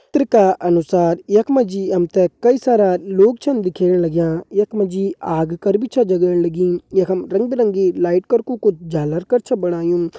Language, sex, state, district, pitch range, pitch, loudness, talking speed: Hindi, male, Uttarakhand, Uttarkashi, 175-220 Hz, 190 Hz, -17 LUFS, 200 wpm